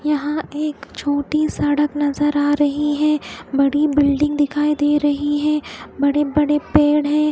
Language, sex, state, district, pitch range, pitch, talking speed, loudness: Hindi, female, Odisha, Khordha, 290-300 Hz, 295 Hz, 150 wpm, -18 LUFS